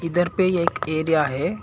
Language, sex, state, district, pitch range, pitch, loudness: Hindi, male, Karnataka, Bangalore, 155-175 Hz, 165 Hz, -22 LUFS